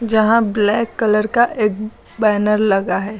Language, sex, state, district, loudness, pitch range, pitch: Hindi, female, Uttar Pradesh, Lucknow, -16 LUFS, 210-225 Hz, 215 Hz